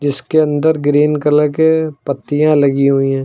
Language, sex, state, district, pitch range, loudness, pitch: Hindi, male, Uttar Pradesh, Lucknow, 140-155 Hz, -14 LUFS, 145 Hz